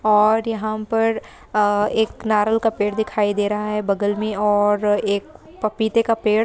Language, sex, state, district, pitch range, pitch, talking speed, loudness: Hindi, female, Andhra Pradesh, Visakhapatnam, 205-220 Hz, 215 Hz, 185 wpm, -20 LUFS